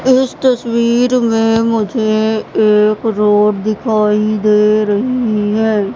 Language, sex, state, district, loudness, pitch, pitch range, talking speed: Hindi, female, Madhya Pradesh, Katni, -13 LUFS, 215 Hz, 210-235 Hz, 100 wpm